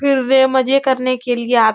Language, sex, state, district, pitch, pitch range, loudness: Hindi, female, Uttar Pradesh, Etah, 260 Hz, 245-265 Hz, -15 LUFS